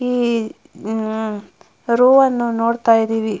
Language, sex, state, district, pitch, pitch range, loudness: Kannada, female, Karnataka, Mysore, 230 Hz, 220-245 Hz, -17 LUFS